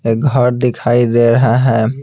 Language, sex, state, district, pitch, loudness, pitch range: Hindi, male, Bihar, Patna, 120 Hz, -12 LUFS, 115-125 Hz